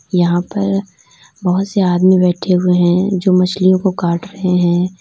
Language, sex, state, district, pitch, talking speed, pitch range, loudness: Hindi, female, Uttar Pradesh, Lalitpur, 180 Hz, 165 wpm, 175-190 Hz, -14 LUFS